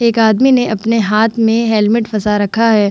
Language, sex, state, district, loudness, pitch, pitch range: Hindi, female, Bihar, Vaishali, -13 LUFS, 225 Hz, 215-230 Hz